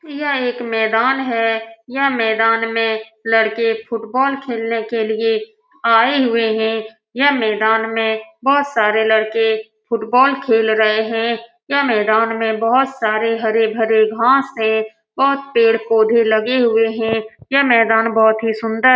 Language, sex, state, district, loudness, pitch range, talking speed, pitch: Hindi, female, Bihar, Saran, -16 LUFS, 220-255 Hz, 140 wpm, 225 Hz